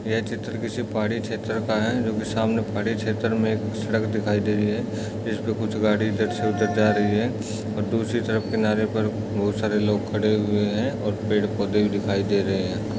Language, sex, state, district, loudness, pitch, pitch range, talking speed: Hindi, male, Uttar Pradesh, Etah, -24 LUFS, 110 Hz, 105-110 Hz, 215 wpm